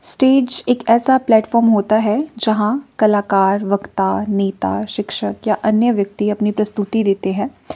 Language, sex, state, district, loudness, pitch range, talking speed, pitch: Hindi, female, Himachal Pradesh, Shimla, -16 LUFS, 205-235 Hz, 140 wpm, 215 Hz